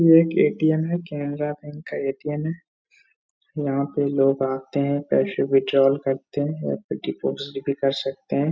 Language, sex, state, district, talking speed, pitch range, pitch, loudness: Hindi, male, Uttar Pradesh, Etah, 170 wpm, 135-155 Hz, 145 Hz, -23 LUFS